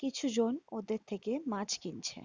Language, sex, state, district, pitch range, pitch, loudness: Bengali, female, West Bengal, Kolkata, 220-260 Hz, 235 Hz, -36 LUFS